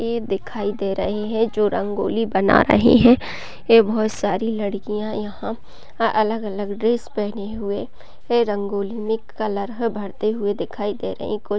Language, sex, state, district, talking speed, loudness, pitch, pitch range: Hindi, female, Chhattisgarh, Raigarh, 155 wpm, -21 LUFS, 210 Hz, 205-225 Hz